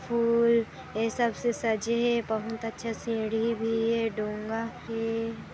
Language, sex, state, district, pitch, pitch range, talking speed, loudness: Hindi, female, Chhattisgarh, Kabirdham, 225 Hz, 225-235 Hz, 150 wpm, -29 LUFS